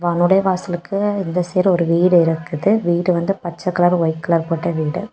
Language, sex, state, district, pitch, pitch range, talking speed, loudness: Tamil, female, Tamil Nadu, Kanyakumari, 175 Hz, 170-185 Hz, 165 wpm, -18 LUFS